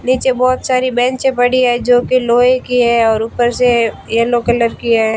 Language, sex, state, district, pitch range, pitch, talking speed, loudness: Hindi, female, Rajasthan, Barmer, 235-255 Hz, 245 Hz, 210 wpm, -13 LUFS